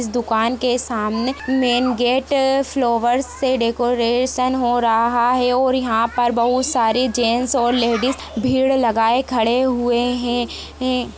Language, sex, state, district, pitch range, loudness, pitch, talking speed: Hindi, female, Chhattisgarh, Jashpur, 235-255 Hz, -18 LUFS, 245 Hz, 135 wpm